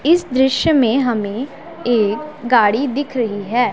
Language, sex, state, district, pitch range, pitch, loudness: Hindi, female, Punjab, Pathankot, 230-285 Hz, 250 Hz, -17 LUFS